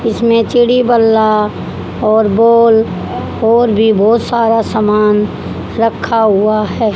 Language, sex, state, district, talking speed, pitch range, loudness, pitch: Hindi, female, Haryana, Charkhi Dadri, 110 wpm, 215-230 Hz, -11 LUFS, 225 Hz